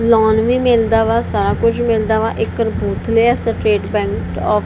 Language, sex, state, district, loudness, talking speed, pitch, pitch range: Punjabi, female, Punjab, Kapurthala, -15 LUFS, 195 wpm, 225 Hz, 215-230 Hz